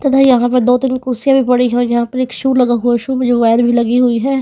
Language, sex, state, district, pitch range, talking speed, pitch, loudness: Hindi, female, Haryana, Charkhi Dadri, 240-260 Hz, 325 wpm, 250 Hz, -13 LUFS